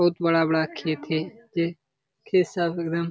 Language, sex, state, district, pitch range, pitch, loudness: Hindi, male, Bihar, Jamui, 160-175 Hz, 165 Hz, -25 LUFS